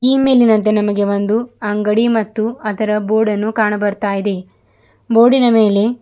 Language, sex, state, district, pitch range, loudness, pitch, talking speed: Kannada, male, Karnataka, Bidar, 205-225 Hz, -14 LUFS, 215 Hz, 130 wpm